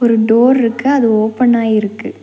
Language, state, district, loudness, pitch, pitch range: Tamil, Tamil Nadu, Nilgiris, -12 LUFS, 230 Hz, 220-245 Hz